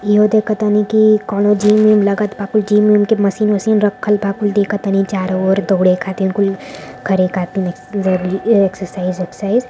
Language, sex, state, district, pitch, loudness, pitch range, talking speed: Hindi, female, Uttar Pradesh, Varanasi, 200 Hz, -15 LUFS, 190-210 Hz, 165 wpm